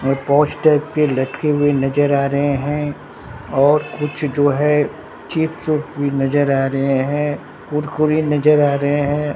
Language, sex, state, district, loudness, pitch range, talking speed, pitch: Hindi, male, Bihar, Katihar, -17 LUFS, 140-150 Hz, 165 wpm, 145 Hz